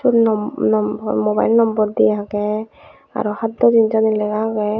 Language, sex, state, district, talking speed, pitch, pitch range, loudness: Chakma, female, Tripura, Unakoti, 160 wpm, 215 Hz, 205-220 Hz, -17 LUFS